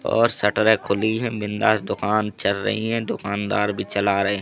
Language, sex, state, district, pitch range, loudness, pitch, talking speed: Hindi, male, Madhya Pradesh, Katni, 100-110 Hz, -22 LUFS, 105 Hz, 175 wpm